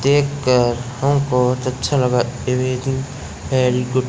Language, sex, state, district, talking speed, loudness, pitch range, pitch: Hindi, male, Madhya Pradesh, Umaria, 90 wpm, -18 LUFS, 125-135 Hz, 130 Hz